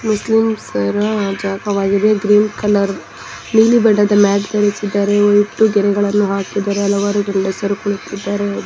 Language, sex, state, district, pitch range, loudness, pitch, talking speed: Kannada, female, Karnataka, Bangalore, 200-210 Hz, -15 LUFS, 205 Hz, 95 wpm